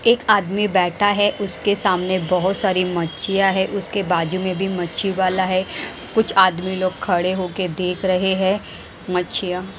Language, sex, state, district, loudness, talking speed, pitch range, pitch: Hindi, female, Himachal Pradesh, Shimla, -19 LUFS, 160 wpm, 180-200 Hz, 190 Hz